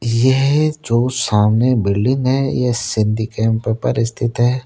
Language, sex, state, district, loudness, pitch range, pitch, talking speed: Hindi, male, Rajasthan, Jaipur, -16 LUFS, 110-130 Hz, 120 Hz, 140 wpm